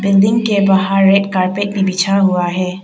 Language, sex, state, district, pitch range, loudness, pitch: Hindi, female, Arunachal Pradesh, Papum Pare, 185-200 Hz, -13 LUFS, 195 Hz